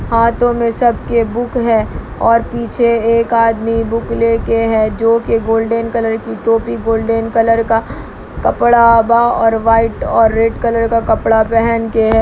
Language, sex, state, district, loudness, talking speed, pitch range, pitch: Hindi, male, Bihar, Kishanganj, -13 LUFS, 160 wpm, 225-230 Hz, 230 Hz